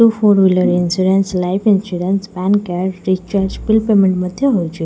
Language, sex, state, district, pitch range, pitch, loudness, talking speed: Odia, female, Odisha, Khordha, 180-205 Hz, 190 Hz, -15 LUFS, 125 wpm